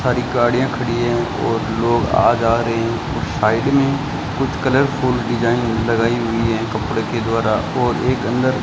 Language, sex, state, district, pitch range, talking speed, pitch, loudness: Hindi, male, Rajasthan, Bikaner, 115-125 Hz, 180 wpm, 120 Hz, -18 LUFS